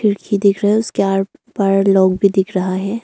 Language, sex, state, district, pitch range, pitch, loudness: Hindi, female, Arunachal Pradesh, Longding, 195-210 Hz, 200 Hz, -16 LUFS